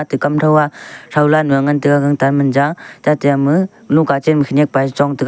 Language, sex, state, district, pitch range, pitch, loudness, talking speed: Wancho, male, Arunachal Pradesh, Longding, 140-150 Hz, 145 Hz, -14 LUFS, 215 wpm